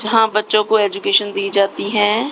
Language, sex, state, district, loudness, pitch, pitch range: Hindi, female, Haryana, Rohtak, -16 LUFS, 210 Hz, 200-215 Hz